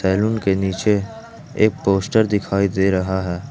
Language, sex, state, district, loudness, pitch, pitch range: Hindi, male, Jharkhand, Ranchi, -19 LUFS, 100 Hz, 95-105 Hz